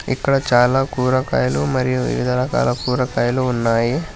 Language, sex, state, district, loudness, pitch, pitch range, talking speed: Telugu, male, Telangana, Hyderabad, -18 LUFS, 125 Hz, 120-130 Hz, 130 wpm